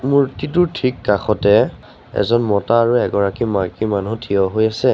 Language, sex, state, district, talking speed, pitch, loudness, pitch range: Assamese, male, Assam, Sonitpur, 145 wpm, 110 Hz, -17 LUFS, 100-125 Hz